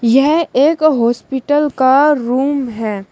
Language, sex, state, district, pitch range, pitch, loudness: Hindi, female, Uttar Pradesh, Shamli, 240-295 Hz, 265 Hz, -14 LUFS